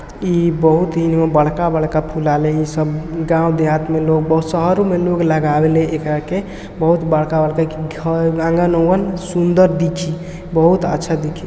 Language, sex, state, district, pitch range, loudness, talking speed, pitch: Hindi, male, Bihar, East Champaran, 155-175 Hz, -16 LUFS, 165 wpm, 165 Hz